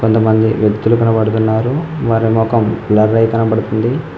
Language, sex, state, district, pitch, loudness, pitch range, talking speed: Telugu, male, Telangana, Mahabubabad, 110 Hz, -14 LUFS, 110-115 Hz, 115 wpm